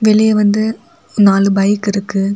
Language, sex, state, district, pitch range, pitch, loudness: Tamil, female, Tamil Nadu, Kanyakumari, 200-215 Hz, 205 Hz, -13 LUFS